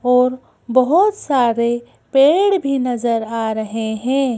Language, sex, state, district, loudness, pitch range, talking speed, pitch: Hindi, female, Madhya Pradesh, Bhopal, -17 LUFS, 235-275 Hz, 125 wpm, 250 Hz